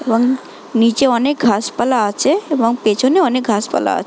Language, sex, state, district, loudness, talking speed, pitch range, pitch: Bengali, female, West Bengal, Jhargram, -15 LUFS, 175 wpm, 230-265 Hz, 245 Hz